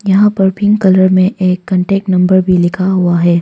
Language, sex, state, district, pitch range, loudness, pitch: Hindi, female, Arunachal Pradesh, Longding, 180-195 Hz, -11 LUFS, 185 Hz